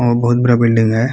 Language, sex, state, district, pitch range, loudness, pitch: Hindi, male, Bihar, Kishanganj, 115-120 Hz, -13 LUFS, 120 Hz